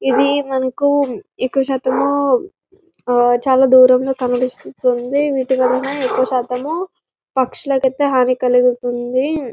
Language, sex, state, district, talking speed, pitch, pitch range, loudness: Telugu, female, Telangana, Karimnagar, 65 wpm, 260 Hz, 250-280 Hz, -16 LUFS